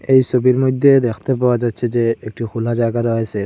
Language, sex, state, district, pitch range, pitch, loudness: Bengali, male, Assam, Hailakandi, 115-130 Hz, 120 Hz, -16 LUFS